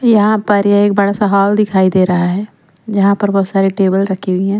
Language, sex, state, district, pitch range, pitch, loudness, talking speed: Hindi, female, Madhya Pradesh, Umaria, 190-205 Hz, 200 Hz, -13 LUFS, 235 wpm